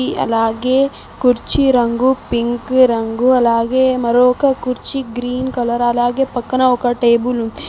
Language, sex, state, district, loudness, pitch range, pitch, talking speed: Telugu, female, Telangana, Mahabubabad, -15 LUFS, 235-255 Hz, 245 Hz, 115 wpm